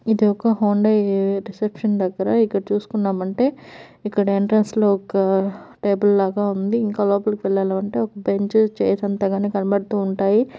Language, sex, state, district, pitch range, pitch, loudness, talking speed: Telugu, female, Andhra Pradesh, Chittoor, 195-215 Hz, 205 Hz, -20 LUFS, 135 wpm